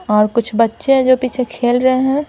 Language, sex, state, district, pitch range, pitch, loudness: Hindi, female, Bihar, Patna, 230-260 Hz, 250 Hz, -15 LUFS